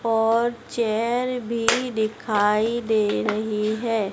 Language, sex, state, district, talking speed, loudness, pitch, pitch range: Hindi, female, Madhya Pradesh, Dhar, 100 wpm, -23 LUFS, 225 Hz, 215-235 Hz